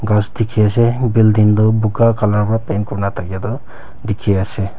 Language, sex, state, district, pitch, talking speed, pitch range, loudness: Nagamese, male, Nagaland, Kohima, 105 Hz, 175 wpm, 105-115 Hz, -15 LUFS